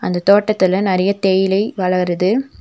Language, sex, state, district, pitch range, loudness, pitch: Tamil, female, Tamil Nadu, Nilgiris, 185-200 Hz, -16 LUFS, 190 Hz